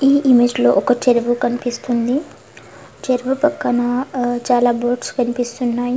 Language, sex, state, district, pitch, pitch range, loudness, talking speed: Telugu, female, Telangana, Karimnagar, 245 Hz, 240-255 Hz, -17 LUFS, 130 wpm